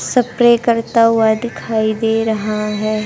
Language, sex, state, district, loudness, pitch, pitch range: Hindi, male, Haryana, Jhajjar, -15 LUFS, 225 Hz, 215-235 Hz